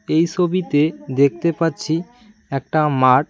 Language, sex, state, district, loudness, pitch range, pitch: Bengali, male, West Bengal, Cooch Behar, -19 LUFS, 140-175 Hz, 160 Hz